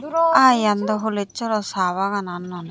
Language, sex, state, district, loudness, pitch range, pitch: Chakma, female, Tripura, Unakoti, -20 LUFS, 190-230 Hz, 210 Hz